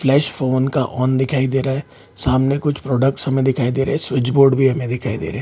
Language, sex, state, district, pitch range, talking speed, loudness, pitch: Hindi, male, Bihar, Purnia, 130-135 Hz, 265 wpm, -18 LUFS, 130 Hz